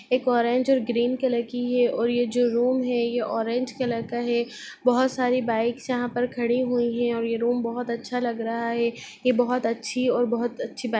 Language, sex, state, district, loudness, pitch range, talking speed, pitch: Hindi, female, Chhattisgarh, Sarguja, -25 LUFS, 235-250 Hz, 230 wpm, 240 Hz